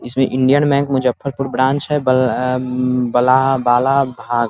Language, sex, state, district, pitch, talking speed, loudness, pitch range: Hindi, male, Bihar, Muzaffarpur, 130 Hz, 135 wpm, -16 LUFS, 125-135 Hz